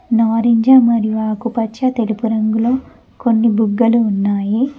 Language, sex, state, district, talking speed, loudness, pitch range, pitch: Telugu, female, Telangana, Mahabubabad, 100 wpm, -15 LUFS, 220-235 Hz, 230 Hz